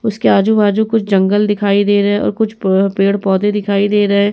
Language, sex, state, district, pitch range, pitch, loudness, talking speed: Hindi, female, Uttar Pradesh, Etah, 200-210 Hz, 205 Hz, -13 LUFS, 210 wpm